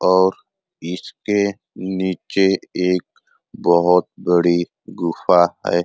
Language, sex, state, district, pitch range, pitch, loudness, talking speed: Hindi, male, Uttar Pradesh, Ghazipur, 85-95 Hz, 90 Hz, -19 LUFS, 80 wpm